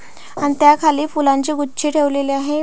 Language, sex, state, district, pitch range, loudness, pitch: Marathi, female, Maharashtra, Pune, 280-300 Hz, -16 LUFS, 295 Hz